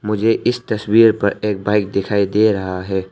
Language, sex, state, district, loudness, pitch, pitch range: Hindi, male, Arunachal Pradesh, Lower Dibang Valley, -17 LUFS, 105 Hz, 100-110 Hz